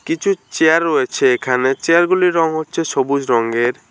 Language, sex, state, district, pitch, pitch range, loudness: Bengali, male, West Bengal, Alipurduar, 160 Hz, 130-170 Hz, -16 LUFS